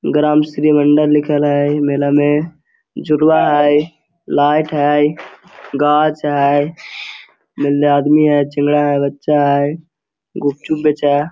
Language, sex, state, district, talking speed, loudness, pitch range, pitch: Hindi, male, Jharkhand, Sahebganj, 105 wpm, -14 LUFS, 145-150 Hz, 145 Hz